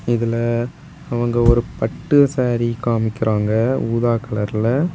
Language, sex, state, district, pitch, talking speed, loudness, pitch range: Tamil, male, Tamil Nadu, Kanyakumari, 120 Hz, 110 wpm, -19 LUFS, 115-125 Hz